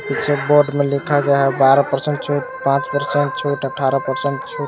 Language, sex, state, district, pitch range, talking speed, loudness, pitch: Hindi, male, Jharkhand, Palamu, 135-145 Hz, 195 wpm, -17 LUFS, 140 Hz